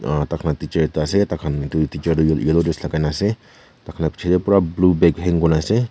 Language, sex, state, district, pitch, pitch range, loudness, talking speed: Nagamese, male, Nagaland, Kohima, 85 Hz, 80-90 Hz, -19 LUFS, 295 wpm